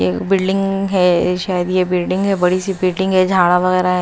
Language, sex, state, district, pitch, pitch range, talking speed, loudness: Hindi, female, Maharashtra, Mumbai Suburban, 185 Hz, 180-190 Hz, 210 wpm, -16 LUFS